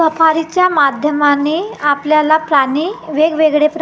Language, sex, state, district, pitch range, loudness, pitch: Marathi, female, Maharashtra, Gondia, 295-325 Hz, -13 LUFS, 310 Hz